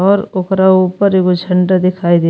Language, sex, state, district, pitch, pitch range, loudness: Bhojpuri, female, Uttar Pradesh, Ghazipur, 185 Hz, 180-190 Hz, -12 LUFS